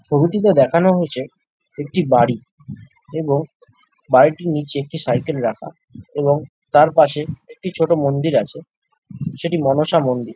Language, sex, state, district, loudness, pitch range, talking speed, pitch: Bengali, male, West Bengal, Jhargram, -17 LUFS, 140-170 Hz, 120 wpm, 150 Hz